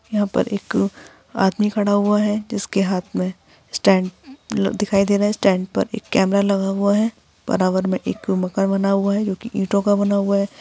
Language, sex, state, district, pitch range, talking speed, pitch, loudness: Hindi, female, Bihar, Gaya, 195-210 Hz, 205 wpm, 200 Hz, -20 LUFS